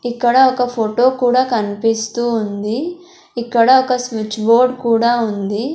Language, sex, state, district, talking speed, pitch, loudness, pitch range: Telugu, female, Andhra Pradesh, Sri Satya Sai, 125 wpm, 240 Hz, -15 LUFS, 225-255 Hz